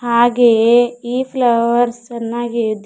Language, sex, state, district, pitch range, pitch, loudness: Kannada, female, Karnataka, Bidar, 235-245 Hz, 240 Hz, -15 LUFS